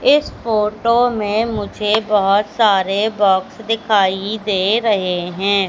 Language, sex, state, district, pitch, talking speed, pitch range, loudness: Hindi, female, Madhya Pradesh, Katni, 210 Hz, 115 wpm, 195-220 Hz, -16 LUFS